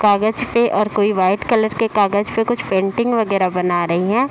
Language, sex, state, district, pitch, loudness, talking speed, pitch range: Hindi, female, Bihar, Saharsa, 210 Hz, -17 LUFS, 210 wpm, 195-230 Hz